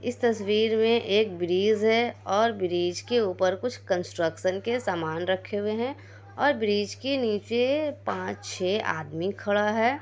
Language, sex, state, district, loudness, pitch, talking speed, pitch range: Hindi, female, Bihar, Kishanganj, -26 LUFS, 210 Hz, 155 wpm, 185-235 Hz